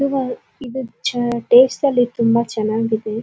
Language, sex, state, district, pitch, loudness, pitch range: Kannada, female, Karnataka, Dharwad, 240 Hz, -18 LUFS, 225-255 Hz